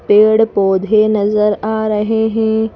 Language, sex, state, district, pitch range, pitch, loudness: Hindi, female, Madhya Pradesh, Bhopal, 210-220 Hz, 215 Hz, -13 LUFS